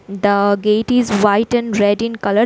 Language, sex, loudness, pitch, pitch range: English, female, -15 LUFS, 210 Hz, 205-230 Hz